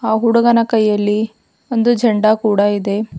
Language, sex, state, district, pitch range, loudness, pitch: Kannada, female, Karnataka, Bidar, 205-230 Hz, -15 LUFS, 220 Hz